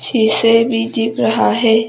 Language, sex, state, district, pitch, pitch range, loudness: Hindi, female, Arunachal Pradesh, Papum Pare, 225 Hz, 225-230 Hz, -13 LUFS